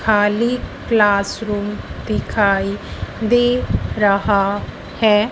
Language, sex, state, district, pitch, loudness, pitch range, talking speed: Hindi, female, Madhya Pradesh, Dhar, 210 Hz, -18 LUFS, 200-225 Hz, 80 wpm